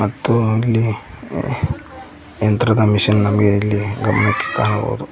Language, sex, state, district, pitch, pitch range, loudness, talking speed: Kannada, male, Karnataka, Koppal, 105 Hz, 105-110 Hz, -17 LUFS, 95 wpm